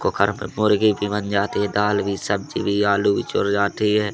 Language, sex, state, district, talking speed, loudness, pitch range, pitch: Hindi, male, Madhya Pradesh, Katni, 230 wpm, -21 LUFS, 100-105 Hz, 105 Hz